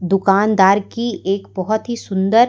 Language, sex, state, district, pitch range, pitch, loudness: Hindi, female, Madhya Pradesh, Umaria, 190-220 Hz, 200 Hz, -17 LUFS